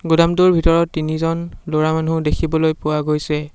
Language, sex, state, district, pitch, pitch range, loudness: Assamese, male, Assam, Sonitpur, 160 Hz, 155-165 Hz, -18 LUFS